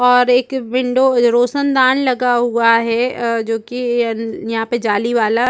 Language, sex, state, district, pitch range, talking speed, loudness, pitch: Hindi, female, Chhattisgarh, Rajnandgaon, 230-250 Hz, 185 wpm, -15 LUFS, 240 Hz